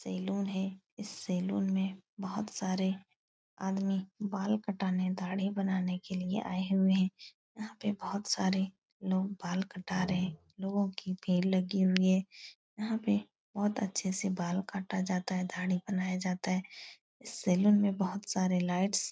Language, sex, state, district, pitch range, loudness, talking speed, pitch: Hindi, female, Uttar Pradesh, Etah, 185-200 Hz, -33 LUFS, 165 wpm, 190 Hz